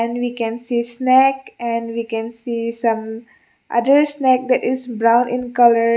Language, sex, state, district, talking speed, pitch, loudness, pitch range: English, female, Mizoram, Aizawl, 170 wpm, 235 Hz, -18 LUFS, 230-255 Hz